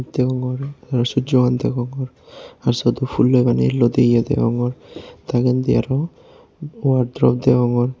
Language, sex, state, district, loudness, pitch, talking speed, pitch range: Chakma, male, Tripura, West Tripura, -18 LUFS, 125 Hz, 105 wpm, 120-130 Hz